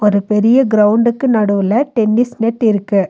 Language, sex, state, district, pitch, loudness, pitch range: Tamil, female, Tamil Nadu, Nilgiris, 220 Hz, -13 LUFS, 210-235 Hz